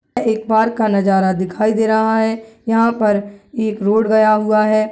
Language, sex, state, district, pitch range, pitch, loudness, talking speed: Angika, female, Bihar, Madhepura, 210-220 Hz, 220 Hz, -16 LUFS, 185 wpm